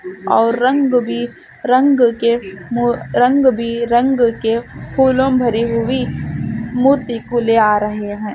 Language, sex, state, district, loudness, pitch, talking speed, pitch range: Hindi, female, Jharkhand, Sahebganj, -16 LUFS, 240 Hz, 160 wpm, 230-255 Hz